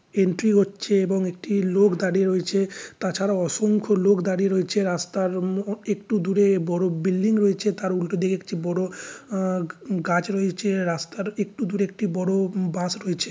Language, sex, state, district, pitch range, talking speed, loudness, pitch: Bengali, male, West Bengal, North 24 Parganas, 185-200 Hz, 160 wpm, -23 LUFS, 190 Hz